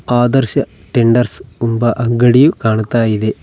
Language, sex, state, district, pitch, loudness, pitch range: Kannada, male, Karnataka, Koppal, 120 Hz, -13 LUFS, 110-125 Hz